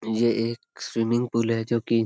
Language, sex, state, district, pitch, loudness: Hindi, male, Jharkhand, Sahebganj, 115 Hz, -25 LUFS